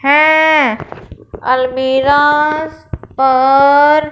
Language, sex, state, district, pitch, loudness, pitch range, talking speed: Hindi, female, Punjab, Fazilka, 285 Hz, -11 LUFS, 265-300 Hz, 45 wpm